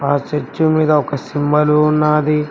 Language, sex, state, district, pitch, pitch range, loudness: Telugu, male, Telangana, Mahabubabad, 150 Hz, 145-150 Hz, -15 LUFS